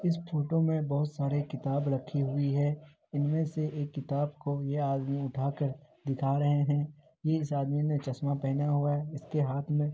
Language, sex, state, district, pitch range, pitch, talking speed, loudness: Hindi, male, Bihar, Kishanganj, 140-150 Hz, 145 Hz, 185 wpm, -31 LUFS